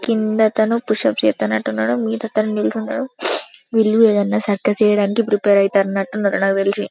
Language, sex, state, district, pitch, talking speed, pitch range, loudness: Telugu, female, Telangana, Karimnagar, 210 Hz, 165 wpm, 195-220 Hz, -17 LUFS